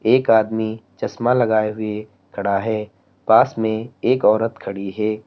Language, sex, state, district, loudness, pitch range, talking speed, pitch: Hindi, male, Uttar Pradesh, Lalitpur, -19 LUFS, 105-110 Hz, 150 wpm, 110 Hz